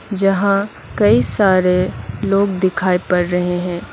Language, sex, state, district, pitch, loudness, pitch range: Hindi, female, Mizoram, Aizawl, 185 Hz, -16 LUFS, 180-200 Hz